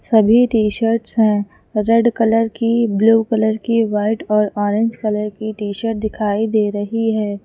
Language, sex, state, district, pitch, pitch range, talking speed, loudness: Hindi, female, Uttar Pradesh, Lucknow, 220 Hz, 210-225 Hz, 170 wpm, -17 LUFS